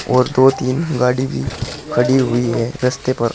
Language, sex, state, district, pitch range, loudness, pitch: Hindi, male, Uttar Pradesh, Saharanpur, 120-130 Hz, -17 LUFS, 130 Hz